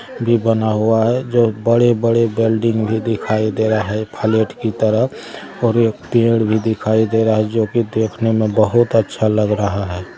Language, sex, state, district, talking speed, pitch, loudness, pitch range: Maithili, male, Bihar, Samastipur, 185 wpm, 110 Hz, -16 LUFS, 110-115 Hz